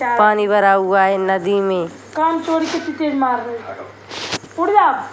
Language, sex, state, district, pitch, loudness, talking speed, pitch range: Hindi, female, Bihar, Sitamarhi, 235 Hz, -17 LUFS, 70 wpm, 195-315 Hz